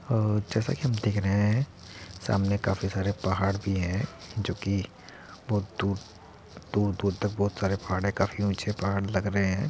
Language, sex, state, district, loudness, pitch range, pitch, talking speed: Hindi, male, Uttar Pradesh, Muzaffarnagar, -28 LUFS, 95-105 Hz, 100 Hz, 165 wpm